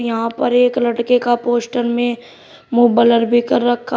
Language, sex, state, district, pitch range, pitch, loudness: Hindi, male, Uttar Pradesh, Shamli, 235-245 Hz, 240 Hz, -15 LUFS